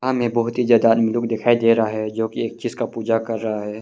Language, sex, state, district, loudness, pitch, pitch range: Hindi, male, Arunachal Pradesh, Longding, -20 LUFS, 115 Hz, 110-120 Hz